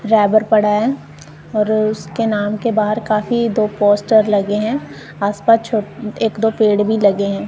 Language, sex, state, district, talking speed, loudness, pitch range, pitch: Hindi, female, Punjab, Kapurthala, 145 wpm, -16 LUFS, 200-220 Hz, 210 Hz